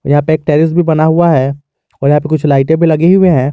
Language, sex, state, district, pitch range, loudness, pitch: Hindi, male, Jharkhand, Garhwa, 145-165 Hz, -10 LUFS, 155 Hz